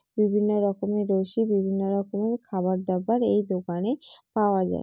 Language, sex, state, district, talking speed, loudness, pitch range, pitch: Bengali, female, West Bengal, Jalpaiguri, 135 wpm, -26 LUFS, 190-215 Hz, 205 Hz